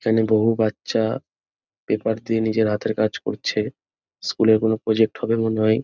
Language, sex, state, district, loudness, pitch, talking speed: Bengali, male, West Bengal, North 24 Parganas, -21 LUFS, 110 Hz, 155 wpm